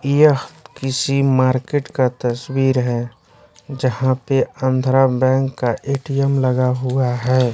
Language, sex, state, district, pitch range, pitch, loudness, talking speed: Hindi, male, Bihar, West Champaran, 125-135 Hz, 130 Hz, -18 LUFS, 120 wpm